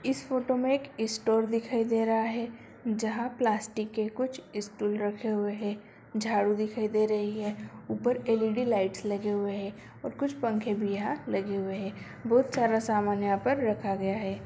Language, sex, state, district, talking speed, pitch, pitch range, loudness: Hindi, female, Bihar, Jamui, 185 wpm, 220 Hz, 205-235 Hz, -30 LUFS